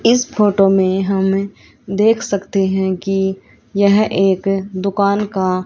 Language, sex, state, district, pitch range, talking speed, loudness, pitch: Hindi, female, Haryana, Rohtak, 190-200 Hz, 125 wpm, -16 LUFS, 195 Hz